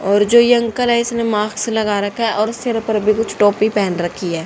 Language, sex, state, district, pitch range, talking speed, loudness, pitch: Hindi, female, Haryana, Charkhi Dadri, 205-230 Hz, 255 wpm, -16 LUFS, 215 Hz